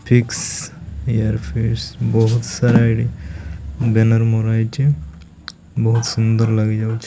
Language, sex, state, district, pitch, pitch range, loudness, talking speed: Odia, male, Odisha, Malkangiri, 115 Hz, 110-115 Hz, -18 LUFS, 120 wpm